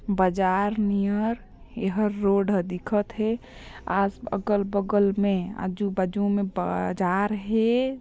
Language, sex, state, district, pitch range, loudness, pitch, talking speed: Chhattisgarhi, female, Chhattisgarh, Sarguja, 190-210 Hz, -25 LUFS, 200 Hz, 105 wpm